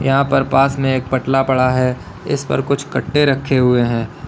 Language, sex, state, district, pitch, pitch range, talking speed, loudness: Hindi, male, Uttar Pradesh, Lalitpur, 130 Hz, 125-135 Hz, 210 wpm, -16 LUFS